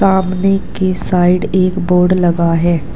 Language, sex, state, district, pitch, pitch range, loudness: Hindi, male, Uttar Pradesh, Saharanpur, 185 Hz, 175-185 Hz, -13 LUFS